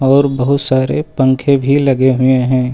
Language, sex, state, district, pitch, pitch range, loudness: Hindi, male, Uttar Pradesh, Lucknow, 130 Hz, 130-140 Hz, -13 LUFS